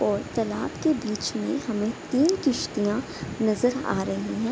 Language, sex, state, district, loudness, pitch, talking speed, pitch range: Hindi, female, Bihar, Gopalganj, -26 LUFS, 235 Hz, 160 wpm, 210-275 Hz